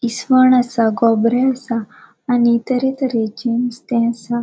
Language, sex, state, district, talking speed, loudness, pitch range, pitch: Konkani, female, Goa, North and South Goa, 120 wpm, -16 LUFS, 230-255 Hz, 240 Hz